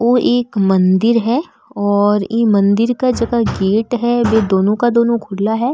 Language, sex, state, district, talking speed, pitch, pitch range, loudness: Marwari, female, Rajasthan, Nagaur, 175 wpm, 225 Hz, 205-240 Hz, -15 LUFS